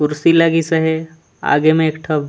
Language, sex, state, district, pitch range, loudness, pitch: Chhattisgarhi, male, Chhattisgarh, Raigarh, 155-165 Hz, -15 LUFS, 160 Hz